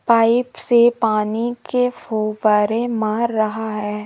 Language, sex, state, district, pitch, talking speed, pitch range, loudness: Hindi, female, Madhya Pradesh, Umaria, 225 Hz, 120 wpm, 215-235 Hz, -18 LUFS